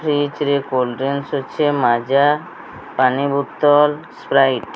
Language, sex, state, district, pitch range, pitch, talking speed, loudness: Odia, male, Odisha, Sambalpur, 135-145 Hz, 140 Hz, 115 wpm, -17 LUFS